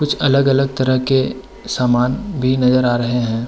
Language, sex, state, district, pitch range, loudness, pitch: Hindi, male, Uttarakhand, Tehri Garhwal, 125-135 Hz, -16 LUFS, 130 Hz